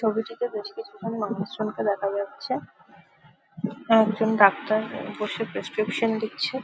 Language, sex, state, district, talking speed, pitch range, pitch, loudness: Bengali, female, West Bengal, Jalpaiguri, 125 wpm, 210-230 Hz, 220 Hz, -26 LUFS